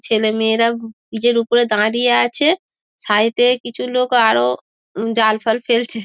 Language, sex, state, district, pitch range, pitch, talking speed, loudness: Bengali, female, West Bengal, Dakshin Dinajpur, 220-240 Hz, 230 Hz, 130 wpm, -16 LUFS